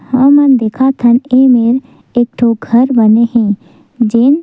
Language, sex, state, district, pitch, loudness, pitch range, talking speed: Chhattisgarhi, female, Chhattisgarh, Sukma, 240 Hz, -10 LUFS, 230-260 Hz, 150 wpm